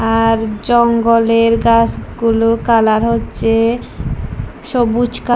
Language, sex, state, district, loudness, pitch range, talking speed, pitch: Bengali, female, Tripura, West Tripura, -14 LUFS, 225-235 Hz, 90 wpm, 230 Hz